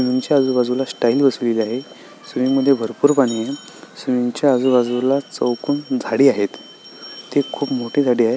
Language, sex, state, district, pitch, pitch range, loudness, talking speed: Marathi, male, Maharashtra, Sindhudurg, 130 Hz, 120-140 Hz, -18 LUFS, 160 wpm